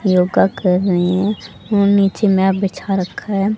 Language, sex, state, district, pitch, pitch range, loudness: Hindi, female, Haryana, Jhajjar, 195 Hz, 185-200 Hz, -16 LUFS